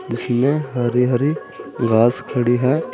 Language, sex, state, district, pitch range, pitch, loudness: Hindi, male, Uttar Pradesh, Saharanpur, 120-140 Hz, 125 Hz, -18 LUFS